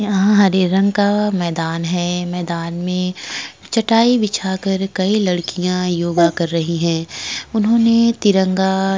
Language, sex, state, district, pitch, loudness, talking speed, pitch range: Hindi, female, Uttar Pradesh, Etah, 190 Hz, -17 LUFS, 125 wpm, 175-205 Hz